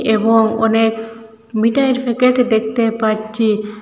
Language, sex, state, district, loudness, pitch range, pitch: Bengali, female, Assam, Hailakandi, -15 LUFS, 220-230 Hz, 225 Hz